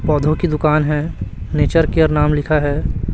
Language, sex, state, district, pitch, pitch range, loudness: Hindi, male, Chhattisgarh, Raipur, 150 Hz, 150-155 Hz, -17 LUFS